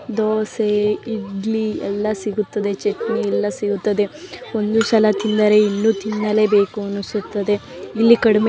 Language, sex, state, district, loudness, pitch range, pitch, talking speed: Kannada, female, Karnataka, Mysore, -19 LUFS, 205-220 Hz, 210 Hz, 115 wpm